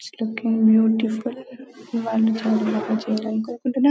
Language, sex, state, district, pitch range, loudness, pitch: Telugu, female, Telangana, Karimnagar, 220-245 Hz, -22 LUFS, 225 Hz